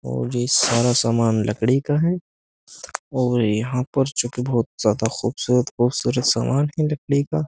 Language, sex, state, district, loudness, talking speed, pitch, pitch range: Hindi, male, Uttar Pradesh, Jyotiba Phule Nagar, -21 LUFS, 160 wpm, 125 Hz, 115-140 Hz